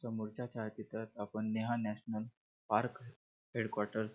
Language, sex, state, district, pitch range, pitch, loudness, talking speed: Marathi, male, Maharashtra, Pune, 110-120 Hz, 110 Hz, -40 LUFS, 130 wpm